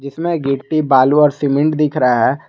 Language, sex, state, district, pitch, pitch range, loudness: Hindi, male, Jharkhand, Garhwa, 145 Hz, 140-155 Hz, -14 LUFS